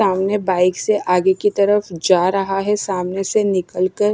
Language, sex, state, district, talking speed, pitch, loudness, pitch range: Hindi, female, Himachal Pradesh, Shimla, 190 wpm, 195 Hz, -17 LUFS, 185-205 Hz